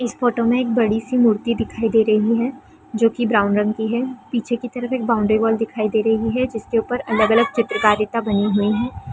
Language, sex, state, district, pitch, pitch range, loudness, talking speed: Hindi, female, Chhattisgarh, Raigarh, 230 Hz, 220-240 Hz, -19 LUFS, 225 wpm